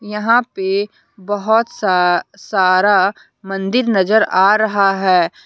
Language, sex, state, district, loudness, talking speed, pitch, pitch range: Hindi, female, Jharkhand, Deoghar, -15 LUFS, 110 wpm, 205 Hz, 190-225 Hz